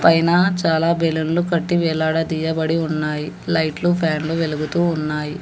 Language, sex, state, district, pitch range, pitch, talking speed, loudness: Telugu, male, Telangana, Hyderabad, 160-170 Hz, 165 Hz, 110 wpm, -19 LUFS